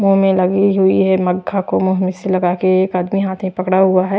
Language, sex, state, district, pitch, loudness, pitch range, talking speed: Hindi, female, Chhattisgarh, Raipur, 190 Hz, -15 LUFS, 185-195 Hz, 270 wpm